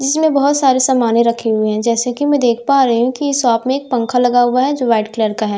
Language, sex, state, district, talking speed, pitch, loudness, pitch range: Hindi, female, Bihar, Katihar, 300 wpm, 245 Hz, -14 LUFS, 230-275 Hz